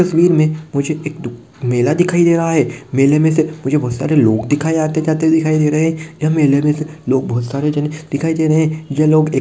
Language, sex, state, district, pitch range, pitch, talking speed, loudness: Hindi, male, Rajasthan, Nagaur, 140-160 Hz, 155 Hz, 235 wpm, -15 LUFS